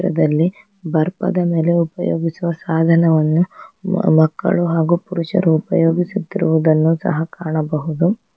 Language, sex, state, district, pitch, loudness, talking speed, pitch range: Kannada, female, Karnataka, Bangalore, 165 Hz, -17 LUFS, 80 wpm, 160-180 Hz